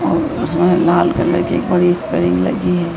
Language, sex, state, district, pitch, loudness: Hindi, female, Madhya Pradesh, Dhar, 170 Hz, -15 LUFS